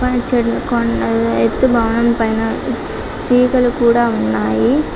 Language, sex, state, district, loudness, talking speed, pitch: Telugu, female, Telangana, Karimnagar, -15 LUFS, 95 wpm, 235 Hz